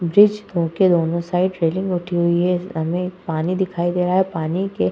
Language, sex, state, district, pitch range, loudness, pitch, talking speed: Hindi, female, Uttar Pradesh, Hamirpur, 170-185 Hz, -20 LUFS, 175 Hz, 220 wpm